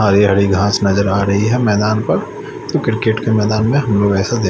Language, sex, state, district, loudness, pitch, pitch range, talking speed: Hindi, male, Chandigarh, Chandigarh, -15 LUFS, 105 Hz, 100-110 Hz, 225 wpm